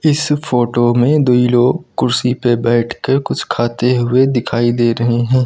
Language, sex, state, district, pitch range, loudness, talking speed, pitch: Hindi, male, Uttar Pradesh, Lucknow, 120-130 Hz, -14 LUFS, 175 wpm, 120 Hz